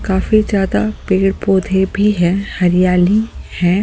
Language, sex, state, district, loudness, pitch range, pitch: Hindi, male, Delhi, New Delhi, -15 LUFS, 185-205 Hz, 195 Hz